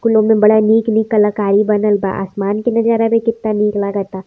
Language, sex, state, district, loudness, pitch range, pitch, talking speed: Hindi, female, Uttar Pradesh, Varanasi, -14 LUFS, 200-225 Hz, 215 Hz, 210 wpm